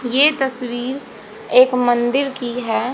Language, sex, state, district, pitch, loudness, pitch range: Hindi, female, Haryana, Jhajjar, 250 Hz, -17 LUFS, 240-270 Hz